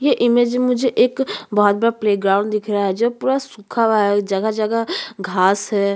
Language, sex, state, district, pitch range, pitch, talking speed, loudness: Hindi, female, Chhattisgarh, Sukma, 205-240 Hz, 215 Hz, 220 wpm, -18 LUFS